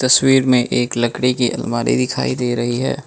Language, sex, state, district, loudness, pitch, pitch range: Hindi, male, Manipur, Imphal West, -17 LUFS, 125 Hz, 120-125 Hz